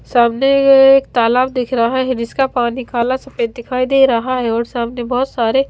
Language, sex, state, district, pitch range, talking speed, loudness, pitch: Hindi, female, Bihar, Kaimur, 235-265 Hz, 200 wpm, -15 LUFS, 250 Hz